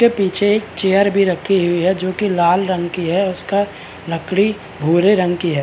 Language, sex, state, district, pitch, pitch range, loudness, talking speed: Hindi, male, Uttarakhand, Uttarkashi, 185 Hz, 175-200 Hz, -17 LUFS, 200 wpm